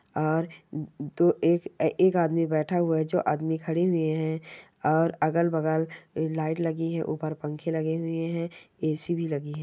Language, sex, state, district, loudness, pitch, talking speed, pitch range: Hindi, female, Rajasthan, Churu, -27 LUFS, 160 Hz, 170 wpm, 155-165 Hz